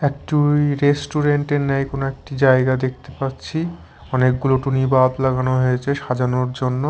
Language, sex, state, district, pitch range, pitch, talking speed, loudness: Bengali, male, Chhattisgarh, Raipur, 130-145 Hz, 135 Hz, 140 wpm, -19 LUFS